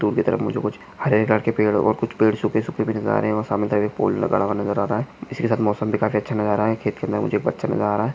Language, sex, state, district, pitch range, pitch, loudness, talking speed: Hindi, male, Maharashtra, Chandrapur, 105-110 Hz, 110 Hz, -22 LUFS, 355 wpm